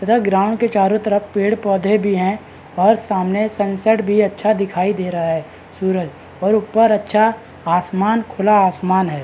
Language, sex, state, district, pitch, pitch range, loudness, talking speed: Hindi, male, Bihar, Madhepura, 205 Hz, 190-215 Hz, -17 LUFS, 160 wpm